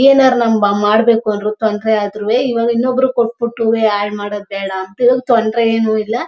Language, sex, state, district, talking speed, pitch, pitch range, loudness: Kannada, male, Karnataka, Mysore, 170 wpm, 225 Hz, 210-235 Hz, -14 LUFS